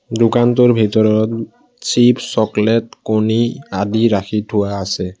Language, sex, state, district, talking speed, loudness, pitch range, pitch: Assamese, male, Assam, Kamrup Metropolitan, 90 wpm, -15 LUFS, 105-120 Hz, 110 Hz